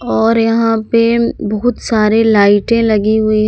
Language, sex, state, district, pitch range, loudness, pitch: Hindi, female, Jharkhand, Palamu, 215-230 Hz, -12 LUFS, 225 Hz